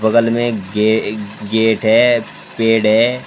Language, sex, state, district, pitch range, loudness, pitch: Hindi, male, Uttar Pradesh, Shamli, 110-120 Hz, -15 LUFS, 110 Hz